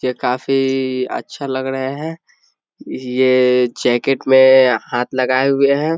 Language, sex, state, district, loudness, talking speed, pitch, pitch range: Hindi, male, Bihar, East Champaran, -16 LUFS, 130 wpm, 130 Hz, 125-135 Hz